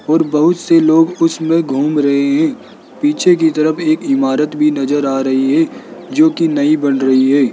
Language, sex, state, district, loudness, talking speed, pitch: Hindi, male, Rajasthan, Jaipur, -13 LUFS, 185 wpm, 160 Hz